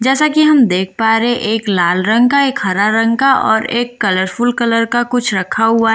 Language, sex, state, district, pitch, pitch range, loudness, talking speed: Hindi, female, Bihar, Katihar, 230 Hz, 210-245 Hz, -13 LUFS, 220 wpm